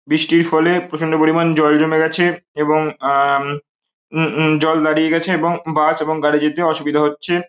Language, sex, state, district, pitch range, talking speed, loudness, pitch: Bengali, male, West Bengal, Malda, 150-165 Hz, 170 wpm, -16 LUFS, 155 Hz